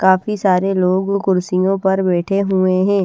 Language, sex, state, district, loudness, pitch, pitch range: Hindi, female, Haryana, Charkhi Dadri, -16 LUFS, 190 Hz, 185-195 Hz